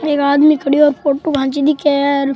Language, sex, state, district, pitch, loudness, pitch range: Rajasthani, male, Rajasthan, Churu, 285 Hz, -14 LUFS, 280-295 Hz